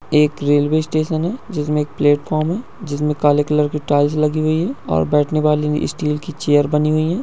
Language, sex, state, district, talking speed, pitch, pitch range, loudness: Hindi, male, Uttar Pradesh, Hamirpur, 205 wpm, 150 Hz, 145-155 Hz, -18 LUFS